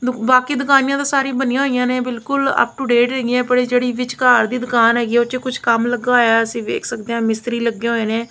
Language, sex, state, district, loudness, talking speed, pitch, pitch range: Punjabi, female, Punjab, Kapurthala, -17 LUFS, 230 wpm, 245 Hz, 235-255 Hz